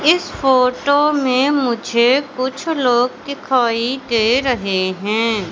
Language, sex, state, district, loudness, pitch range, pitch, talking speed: Hindi, male, Madhya Pradesh, Katni, -16 LUFS, 235-275 Hz, 255 Hz, 110 wpm